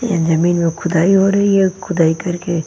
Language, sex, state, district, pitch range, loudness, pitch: Hindi, female, Bihar, Patna, 165-195 Hz, -15 LUFS, 175 Hz